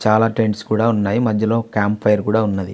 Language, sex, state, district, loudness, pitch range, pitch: Telugu, male, Andhra Pradesh, Visakhapatnam, -18 LUFS, 105-115 Hz, 110 Hz